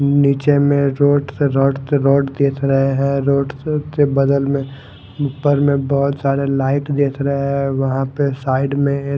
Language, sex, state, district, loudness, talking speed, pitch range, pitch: Hindi, male, Haryana, Jhajjar, -17 LUFS, 195 wpm, 135-140 Hz, 140 Hz